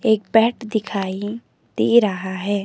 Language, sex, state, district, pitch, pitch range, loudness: Hindi, female, Himachal Pradesh, Shimla, 210 Hz, 200-225 Hz, -20 LUFS